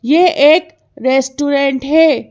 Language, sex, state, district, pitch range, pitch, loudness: Hindi, female, Madhya Pradesh, Bhopal, 270-320 Hz, 290 Hz, -12 LUFS